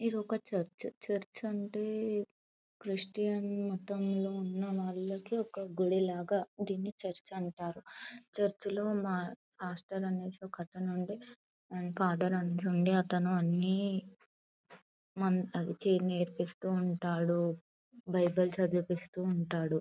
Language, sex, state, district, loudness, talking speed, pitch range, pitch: Telugu, female, Andhra Pradesh, Anantapur, -35 LUFS, 105 wpm, 180-200 Hz, 185 Hz